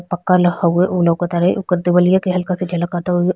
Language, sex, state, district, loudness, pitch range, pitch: Bhojpuri, female, Bihar, East Champaran, -16 LUFS, 175-180 Hz, 180 Hz